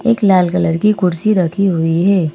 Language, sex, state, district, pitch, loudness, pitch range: Hindi, female, Madhya Pradesh, Bhopal, 185 Hz, -14 LUFS, 170-200 Hz